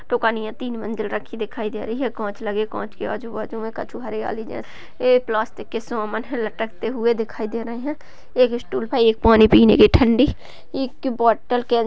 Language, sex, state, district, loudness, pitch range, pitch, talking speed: Hindi, female, Uttar Pradesh, Ghazipur, -21 LUFS, 220-245 Hz, 230 Hz, 155 wpm